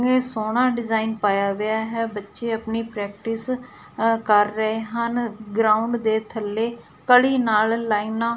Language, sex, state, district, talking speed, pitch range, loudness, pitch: Punjabi, female, Punjab, Fazilka, 145 wpm, 215-235 Hz, -22 LUFS, 225 Hz